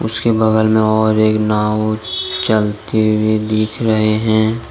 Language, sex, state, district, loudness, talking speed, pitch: Hindi, male, Jharkhand, Deoghar, -15 LUFS, 140 wpm, 110 Hz